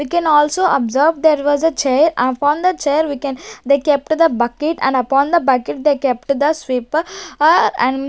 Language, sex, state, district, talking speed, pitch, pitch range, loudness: English, female, Maharashtra, Gondia, 205 wpm, 290 Hz, 270-315 Hz, -15 LUFS